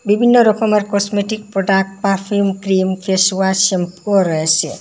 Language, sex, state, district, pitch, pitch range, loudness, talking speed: Bengali, female, Assam, Hailakandi, 195 Hz, 190-205 Hz, -15 LUFS, 110 wpm